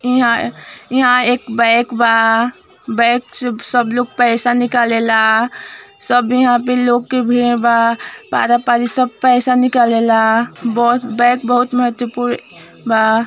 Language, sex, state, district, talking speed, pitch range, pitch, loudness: Hindi, female, Uttar Pradesh, Ghazipur, 120 wpm, 230-245 Hz, 240 Hz, -14 LUFS